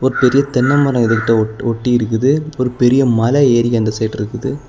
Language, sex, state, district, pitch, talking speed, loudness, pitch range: Tamil, male, Tamil Nadu, Kanyakumari, 125 Hz, 205 wpm, -14 LUFS, 115-135 Hz